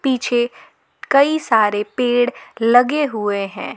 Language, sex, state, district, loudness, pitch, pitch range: Hindi, female, Jharkhand, Garhwa, -17 LUFS, 245 Hz, 220-275 Hz